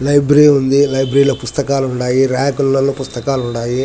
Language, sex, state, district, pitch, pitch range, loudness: Telugu, male, Andhra Pradesh, Anantapur, 135 Hz, 130-140 Hz, -14 LUFS